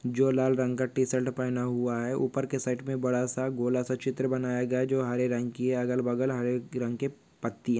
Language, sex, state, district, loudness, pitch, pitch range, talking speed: Hindi, male, Maharashtra, Pune, -29 LUFS, 125 Hz, 125-130 Hz, 225 wpm